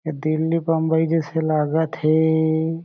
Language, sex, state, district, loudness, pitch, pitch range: Chhattisgarhi, male, Chhattisgarh, Jashpur, -20 LUFS, 160 Hz, 155-160 Hz